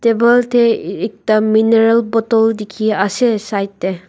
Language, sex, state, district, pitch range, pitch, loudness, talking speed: Nagamese, female, Nagaland, Dimapur, 210-230 Hz, 220 Hz, -14 LUFS, 130 wpm